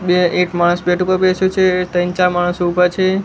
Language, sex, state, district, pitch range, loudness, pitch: Gujarati, male, Gujarat, Gandhinagar, 175-185 Hz, -15 LUFS, 180 Hz